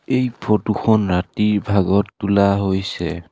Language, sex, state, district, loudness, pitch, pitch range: Assamese, male, Assam, Sonitpur, -18 LUFS, 100 Hz, 95-105 Hz